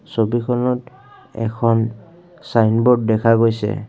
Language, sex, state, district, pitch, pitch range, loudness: Assamese, male, Assam, Kamrup Metropolitan, 115 Hz, 110-125 Hz, -18 LUFS